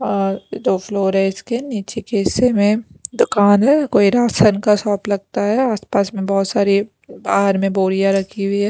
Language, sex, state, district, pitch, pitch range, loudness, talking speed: Hindi, female, Punjab, Pathankot, 205 Hz, 195-215 Hz, -17 LUFS, 185 wpm